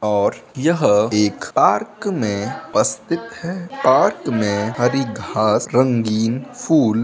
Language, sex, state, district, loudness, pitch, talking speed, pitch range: Hindi, male, Bihar, Bhagalpur, -18 LUFS, 115 Hz, 120 wpm, 105-135 Hz